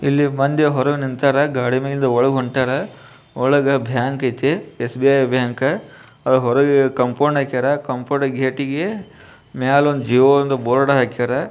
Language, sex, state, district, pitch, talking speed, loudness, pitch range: Kannada, male, Karnataka, Bijapur, 135 Hz, 140 wpm, -18 LUFS, 130-140 Hz